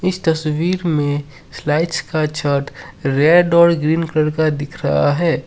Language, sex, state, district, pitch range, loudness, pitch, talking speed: Hindi, male, Assam, Sonitpur, 145-165 Hz, -17 LUFS, 155 Hz, 140 wpm